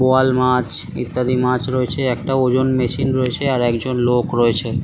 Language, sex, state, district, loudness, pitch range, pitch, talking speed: Bengali, male, West Bengal, Kolkata, -18 LUFS, 120-130 Hz, 125 Hz, 185 wpm